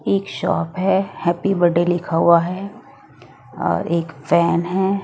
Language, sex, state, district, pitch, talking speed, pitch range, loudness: Hindi, female, Odisha, Nuapada, 170 Hz, 145 wpm, 170-190 Hz, -19 LUFS